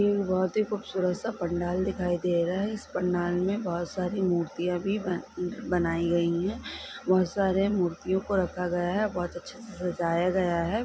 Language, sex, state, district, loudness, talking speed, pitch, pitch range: Hindi, female, Bihar, East Champaran, -28 LUFS, 185 wpm, 180 Hz, 175-195 Hz